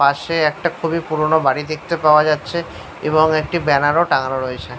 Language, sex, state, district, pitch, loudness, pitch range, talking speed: Bengali, male, West Bengal, Paschim Medinipur, 155 Hz, -17 LUFS, 145-165 Hz, 175 wpm